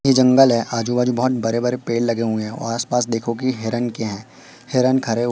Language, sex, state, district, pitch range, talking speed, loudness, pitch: Hindi, female, Madhya Pradesh, Katni, 115-125 Hz, 260 wpm, -19 LUFS, 120 Hz